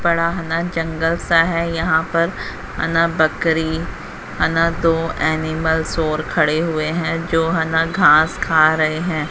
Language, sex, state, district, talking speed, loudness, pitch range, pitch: Hindi, female, Haryana, Jhajjar, 140 wpm, -18 LUFS, 160-165 Hz, 165 Hz